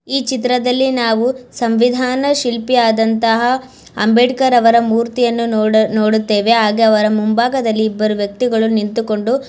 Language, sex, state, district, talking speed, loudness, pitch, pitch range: Kannada, female, Karnataka, Mysore, 115 wpm, -14 LUFS, 230 Hz, 220-250 Hz